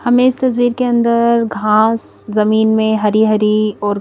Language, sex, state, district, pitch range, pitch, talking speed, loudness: Hindi, female, Madhya Pradesh, Bhopal, 215-240 Hz, 220 Hz, 165 wpm, -14 LUFS